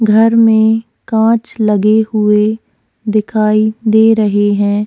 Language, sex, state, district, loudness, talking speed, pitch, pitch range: Hindi, female, Goa, North and South Goa, -12 LUFS, 110 wpm, 215 Hz, 210-220 Hz